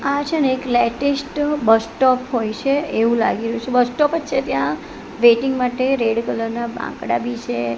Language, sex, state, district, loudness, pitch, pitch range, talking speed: Gujarati, female, Gujarat, Gandhinagar, -19 LUFS, 245 Hz, 230-275 Hz, 195 wpm